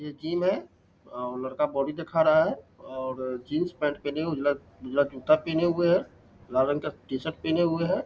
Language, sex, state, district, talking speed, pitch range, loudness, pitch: Hindi, male, Bihar, Lakhisarai, 210 wpm, 130-160 Hz, -27 LUFS, 150 Hz